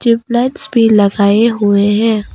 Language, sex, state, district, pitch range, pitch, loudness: Hindi, female, Arunachal Pradesh, Papum Pare, 205-235 Hz, 225 Hz, -11 LUFS